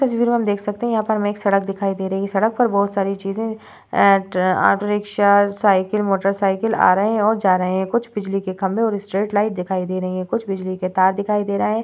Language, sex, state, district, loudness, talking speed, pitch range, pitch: Hindi, female, Bihar, Vaishali, -19 LUFS, 265 wpm, 195-215 Hz, 200 Hz